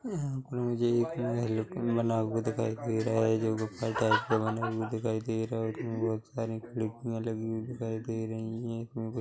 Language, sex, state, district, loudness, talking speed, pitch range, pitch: Hindi, male, Chhattisgarh, Korba, -32 LUFS, 190 wpm, 110-115 Hz, 115 Hz